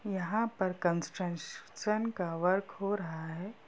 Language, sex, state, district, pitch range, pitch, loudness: Hindi, female, Bihar, Sitamarhi, 175-205 Hz, 185 Hz, -34 LUFS